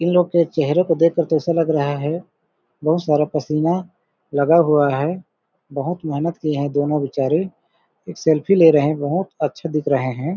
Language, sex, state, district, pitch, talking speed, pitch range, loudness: Hindi, male, Chhattisgarh, Balrampur, 155 Hz, 175 wpm, 145-170 Hz, -19 LUFS